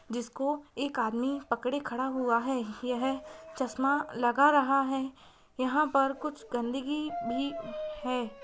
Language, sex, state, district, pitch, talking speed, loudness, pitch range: Hindi, female, Bihar, Purnia, 270 Hz, 130 wpm, -31 LUFS, 245-290 Hz